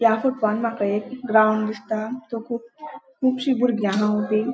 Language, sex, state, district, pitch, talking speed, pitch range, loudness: Konkani, female, Goa, North and South Goa, 225 Hz, 160 wpm, 215-250 Hz, -22 LUFS